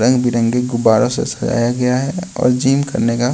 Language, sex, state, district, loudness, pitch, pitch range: Hindi, male, Bihar, West Champaran, -16 LUFS, 125 Hz, 120-130 Hz